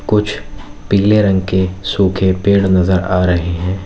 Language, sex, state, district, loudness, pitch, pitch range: Hindi, male, Uttar Pradesh, Lalitpur, -14 LUFS, 95 Hz, 95-100 Hz